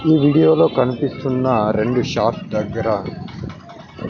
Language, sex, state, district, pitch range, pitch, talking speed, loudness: Telugu, male, Andhra Pradesh, Sri Satya Sai, 130-155 Hz, 135 Hz, 100 wpm, -17 LUFS